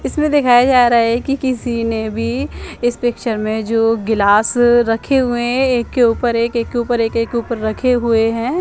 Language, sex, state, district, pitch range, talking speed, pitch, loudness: Hindi, female, Chandigarh, Chandigarh, 225-245 Hz, 200 wpm, 235 Hz, -15 LUFS